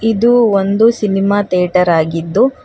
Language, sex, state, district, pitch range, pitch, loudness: Kannada, female, Karnataka, Bangalore, 180-225 Hz, 200 Hz, -13 LUFS